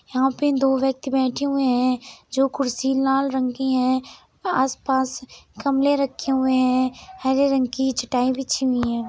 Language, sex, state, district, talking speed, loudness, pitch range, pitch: Hindi, female, Uttar Pradesh, Jalaun, 170 wpm, -22 LUFS, 255-270 Hz, 265 Hz